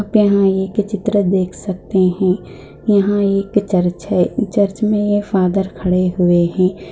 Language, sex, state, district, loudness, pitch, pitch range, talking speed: Hindi, female, Bihar, Purnia, -16 LUFS, 195 Hz, 185-205 Hz, 140 wpm